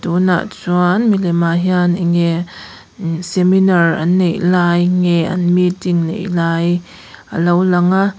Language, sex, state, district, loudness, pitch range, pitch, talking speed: Mizo, female, Mizoram, Aizawl, -15 LUFS, 170-180 Hz, 175 Hz, 145 wpm